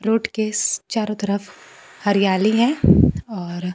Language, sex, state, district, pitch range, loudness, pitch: Hindi, female, Bihar, Kaimur, 200-220 Hz, -19 LUFS, 210 Hz